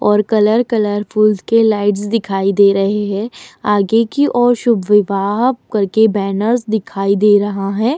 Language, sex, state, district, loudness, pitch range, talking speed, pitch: Hindi, female, Uttar Pradesh, Muzaffarnagar, -14 LUFS, 200-230 Hz, 150 wpm, 210 Hz